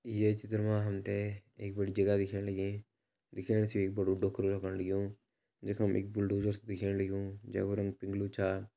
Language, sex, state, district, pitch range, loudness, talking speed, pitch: Garhwali, male, Uttarakhand, Uttarkashi, 100-105 Hz, -35 LUFS, 185 wpm, 100 Hz